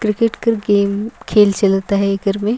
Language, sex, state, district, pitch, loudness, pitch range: Sadri, female, Chhattisgarh, Jashpur, 205 Hz, -16 LUFS, 200-220 Hz